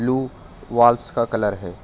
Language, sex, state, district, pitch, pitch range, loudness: Hindi, male, Assam, Hailakandi, 115 Hz, 100-120 Hz, -20 LUFS